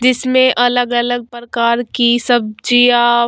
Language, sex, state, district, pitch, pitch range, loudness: Hindi, female, Bihar, Vaishali, 245 Hz, 240-245 Hz, -13 LUFS